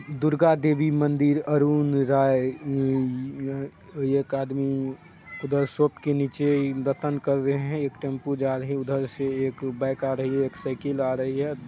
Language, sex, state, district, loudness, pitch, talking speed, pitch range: Hindi, male, Bihar, Saharsa, -25 LUFS, 140 Hz, 155 wpm, 135-145 Hz